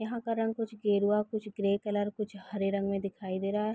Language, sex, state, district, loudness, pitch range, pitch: Hindi, female, Bihar, East Champaran, -32 LUFS, 200-215 Hz, 205 Hz